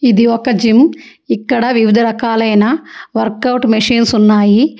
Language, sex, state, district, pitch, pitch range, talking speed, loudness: Telugu, female, Telangana, Hyderabad, 230 Hz, 220-250 Hz, 125 wpm, -12 LUFS